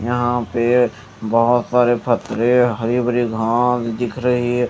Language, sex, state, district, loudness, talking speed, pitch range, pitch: Hindi, male, Chandigarh, Chandigarh, -18 LUFS, 130 wpm, 115-125 Hz, 120 Hz